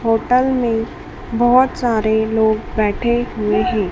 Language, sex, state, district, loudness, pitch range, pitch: Hindi, female, Madhya Pradesh, Dhar, -17 LUFS, 220-240 Hz, 230 Hz